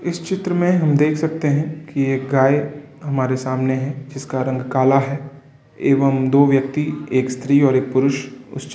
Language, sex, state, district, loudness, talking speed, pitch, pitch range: Hindi, male, Uttar Pradesh, Varanasi, -18 LUFS, 185 wpm, 140 Hz, 130-150 Hz